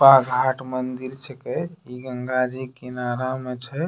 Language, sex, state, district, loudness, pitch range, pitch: Angika, male, Bihar, Bhagalpur, -24 LUFS, 125-135 Hz, 130 Hz